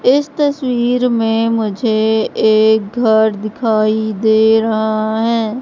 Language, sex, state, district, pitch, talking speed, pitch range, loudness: Hindi, female, Madhya Pradesh, Katni, 220 Hz, 105 wpm, 220-235 Hz, -14 LUFS